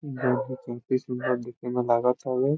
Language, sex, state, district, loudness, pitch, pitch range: Bhojpuri, male, Bihar, Saran, -27 LUFS, 125 Hz, 125-130 Hz